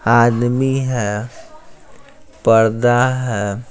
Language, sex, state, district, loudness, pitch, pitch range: Hindi, male, Bihar, Patna, -16 LUFS, 120 Hz, 110-125 Hz